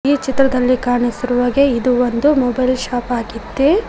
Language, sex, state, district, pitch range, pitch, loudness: Kannada, female, Karnataka, Koppal, 245-270 Hz, 250 Hz, -16 LUFS